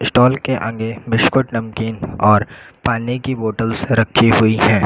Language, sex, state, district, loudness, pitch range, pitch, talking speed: Hindi, male, Uttar Pradesh, Lucknow, -16 LUFS, 110-125 Hz, 115 Hz, 150 wpm